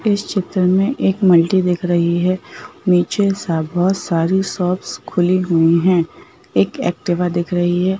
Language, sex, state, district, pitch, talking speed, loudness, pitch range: Hindi, female, Madhya Pradesh, Bhopal, 180 Hz, 150 wpm, -17 LUFS, 175-190 Hz